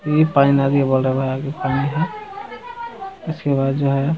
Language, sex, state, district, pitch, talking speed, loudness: Hindi, male, Bihar, Jamui, 140 Hz, 130 wpm, -19 LUFS